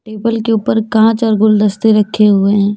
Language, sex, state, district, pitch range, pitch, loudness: Hindi, female, Jharkhand, Deoghar, 210-225 Hz, 215 Hz, -12 LUFS